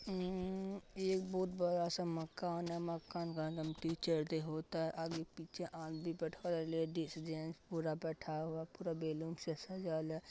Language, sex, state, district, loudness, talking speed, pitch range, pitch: Hindi, female, Bihar, Madhepura, -42 LUFS, 165 wpm, 160-175 Hz, 165 Hz